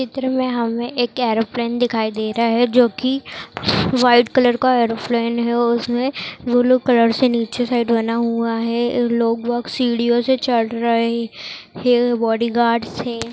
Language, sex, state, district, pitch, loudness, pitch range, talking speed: Hindi, female, Chhattisgarh, Rajnandgaon, 235 Hz, -18 LUFS, 230-245 Hz, 160 wpm